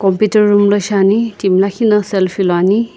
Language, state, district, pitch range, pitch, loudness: Sumi, Nagaland, Kohima, 195-210 Hz, 205 Hz, -13 LUFS